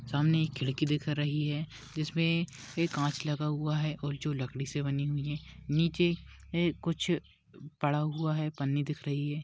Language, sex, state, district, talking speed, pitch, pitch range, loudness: Hindi, male, Maharashtra, Pune, 185 wpm, 150 Hz, 145-160 Hz, -32 LUFS